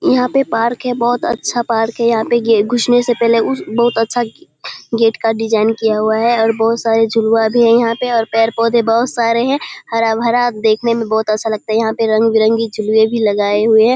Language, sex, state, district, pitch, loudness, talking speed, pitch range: Hindi, female, Bihar, Kishanganj, 225 Hz, -14 LUFS, 225 wpm, 220-235 Hz